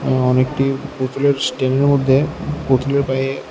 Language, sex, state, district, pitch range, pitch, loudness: Bengali, male, Tripura, West Tripura, 130-140 Hz, 135 Hz, -17 LUFS